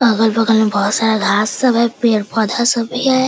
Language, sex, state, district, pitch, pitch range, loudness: Hindi, female, Bihar, Sitamarhi, 225 Hz, 220-240 Hz, -15 LUFS